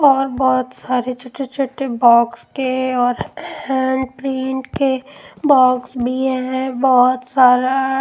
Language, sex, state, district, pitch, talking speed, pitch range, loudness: Hindi, female, Punjab, Pathankot, 260 Hz, 120 wpm, 255-270 Hz, -17 LUFS